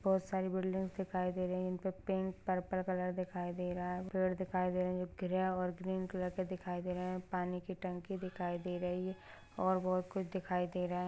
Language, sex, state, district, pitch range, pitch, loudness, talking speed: Hindi, female, Maharashtra, Sindhudurg, 180-185 Hz, 185 Hz, -38 LUFS, 210 wpm